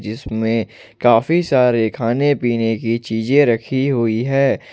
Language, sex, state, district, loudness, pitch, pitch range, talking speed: Hindi, male, Jharkhand, Ranchi, -17 LUFS, 115 Hz, 115-135 Hz, 125 wpm